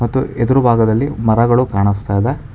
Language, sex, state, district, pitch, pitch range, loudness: Kannada, male, Karnataka, Bangalore, 120 Hz, 110-130 Hz, -15 LUFS